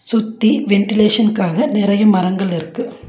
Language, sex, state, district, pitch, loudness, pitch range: Tamil, female, Tamil Nadu, Nilgiris, 210 Hz, -15 LUFS, 195-225 Hz